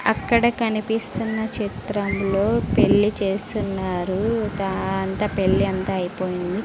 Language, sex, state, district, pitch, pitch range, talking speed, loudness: Telugu, female, Andhra Pradesh, Sri Satya Sai, 200 Hz, 190-220 Hz, 70 wpm, -22 LUFS